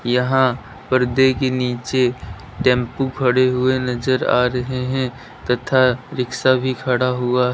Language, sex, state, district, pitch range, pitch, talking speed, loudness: Hindi, male, Uttar Pradesh, Lalitpur, 125-130 Hz, 125 Hz, 125 wpm, -19 LUFS